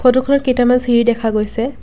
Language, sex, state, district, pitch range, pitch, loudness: Assamese, female, Assam, Kamrup Metropolitan, 235-255 Hz, 245 Hz, -15 LUFS